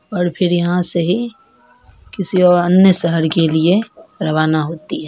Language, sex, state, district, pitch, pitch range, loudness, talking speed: Hindi, female, Bihar, Purnia, 175 Hz, 165-190 Hz, -15 LUFS, 165 wpm